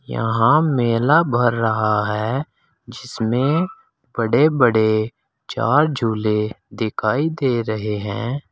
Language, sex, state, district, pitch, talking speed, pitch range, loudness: Hindi, male, Uttar Pradesh, Saharanpur, 115 Hz, 100 wpm, 110-145 Hz, -19 LUFS